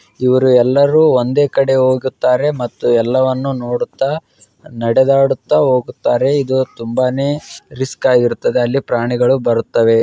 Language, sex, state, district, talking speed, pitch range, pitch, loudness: Kannada, male, Karnataka, Gulbarga, 95 wpm, 120-135 Hz, 130 Hz, -14 LUFS